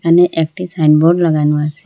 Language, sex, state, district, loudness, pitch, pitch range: Bengali, female, Assam, Hailakandi, -13 LUFS, 165 Hz, 150-175 Hz